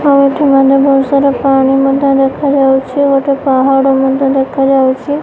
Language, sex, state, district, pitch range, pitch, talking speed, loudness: Odia, female, Odisha, Nuapada, 270-280 Hz, 270 Hz, 125 wpm, -10 LUFS